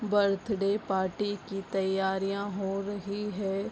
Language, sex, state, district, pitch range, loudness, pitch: Hindi, female, Bihar, Bhagalpur, 195-205 Hz, -31 LUFS, 200 Hz